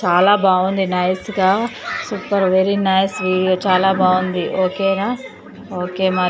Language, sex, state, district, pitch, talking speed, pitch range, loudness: Telugu, female, Andhra Pradesh, Chittoor, 190 Hz, 125 wpm, 185-195 Hz, -17 LUFS